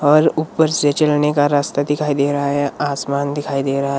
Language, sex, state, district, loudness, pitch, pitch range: Hindi, male, Himachal Pradesh, Shimla, -17 LUFS, 145 Hz, 140-150 Hz